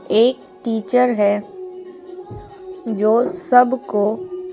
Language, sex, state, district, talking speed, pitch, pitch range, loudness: Hindi, female, Bihar, Patna, 65 wpm, 250 Hz, 220-370 Hz, -18 LUFS